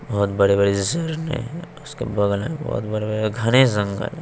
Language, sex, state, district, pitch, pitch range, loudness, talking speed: Hindi, female, Bihar, West Champaran, 110 Hz, 100-140 Hz, -21 LUFS, 170 wpm